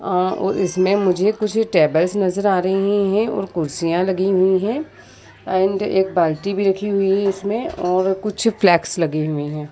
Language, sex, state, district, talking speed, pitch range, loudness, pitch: Hindi, female, Uttar Pradesh, Jyotiba Phule Nagar, 180 wpm, 180-200 Hz, -19 LUFS, 190 Hz